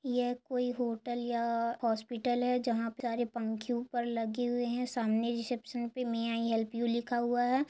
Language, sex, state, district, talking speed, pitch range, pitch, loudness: Hindi, female, Andhra Pradesh, Chittoor, 170 wpm, 230-245 Hz, 240 Hz, -33 LUFS